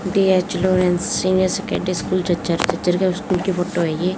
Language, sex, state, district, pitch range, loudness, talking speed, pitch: Hindi, female, Haryana, Jhajjar, 180-185 Hz, -19 LUFS, 145 wpm, 185 Hz